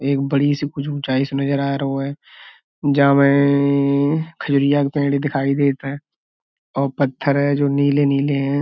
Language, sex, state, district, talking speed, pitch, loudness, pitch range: Hindi, male, Uttar Pradesh, Budaun, 165 wpm, 140 Hz, -18 LUFS, 140-145 Hz